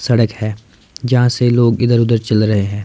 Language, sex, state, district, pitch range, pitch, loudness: Hindi, male, Himachal Pradesh, Shimla, 110-120 Hz, 115 Hz, -14 LUFS